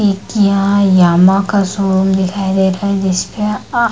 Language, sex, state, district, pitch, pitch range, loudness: Hindi, female, Bihar, Purnia, 195 Hz, 190-200 Hz, -13 LUFS